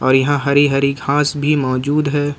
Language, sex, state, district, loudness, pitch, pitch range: Hindi, male, Jharkhand, Ranchi, -16 LUFS, 145 Hz, 140-145 Hz